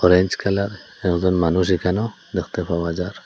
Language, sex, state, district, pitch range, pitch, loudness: Bengali, male, Assam, Hailakandi, 90-95 Hz, 90 Hz, -21 LUFS